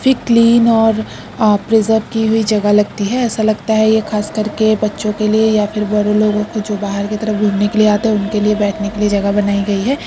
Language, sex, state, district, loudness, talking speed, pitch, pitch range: Hindi, female, Uttarakhand, Uttarkashi, -14 LUFS, 250 wpm, 215 Hz, 210-220 Hz